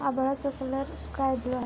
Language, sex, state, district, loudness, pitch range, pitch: Marathi, female, Maharashtra, Sindhudurg, -30 LUFS, 260-270 Hz, 270 Hz